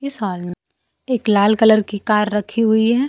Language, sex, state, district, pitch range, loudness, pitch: Hindi, female, Bihar, Kaimur, 205-230 Hz, -17 LUFS, 215 Hz